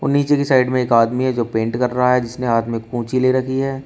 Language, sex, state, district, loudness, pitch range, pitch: Hindi, male, Uttar Pradesh, Shamli, -18 LUFS, 120-130 Hz, 125 Hz